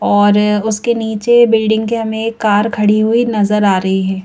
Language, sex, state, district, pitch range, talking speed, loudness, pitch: Hindi, female, Madhya Pradesh, Bhopal, 205-225 Hz, 200 wpm, -13 LUFS, 215 Hz